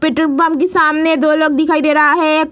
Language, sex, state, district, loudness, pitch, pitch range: Hindi, female, Bihar, Lakhisarai, -12 LUFS, 310 Hz, 305-320 Hz